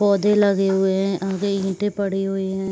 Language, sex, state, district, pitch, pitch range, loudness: Hindi, female, Bihar, Saharsa, 195 Hz, 190-200 Hz, -21 LUFS